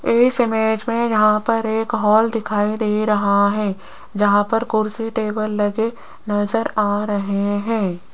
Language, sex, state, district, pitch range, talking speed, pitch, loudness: Hindi, female, Rajasthan, Jaipur, 205-225 Hz, 145 wpm, 215 Hz, -19 LUFS